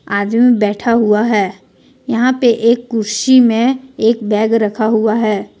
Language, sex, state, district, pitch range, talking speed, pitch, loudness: Hindi, female, Jharkhand, Ranchi, 210-240 Hz, 150 wpm, 225 Hz, -13 LUFS